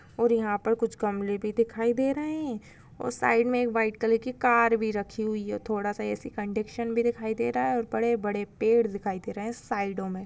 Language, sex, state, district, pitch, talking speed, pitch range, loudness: Hindi, female, Goa, North and South Goa, 225 Hz, 230 wpm, 205-235 Hz, -28 LUFS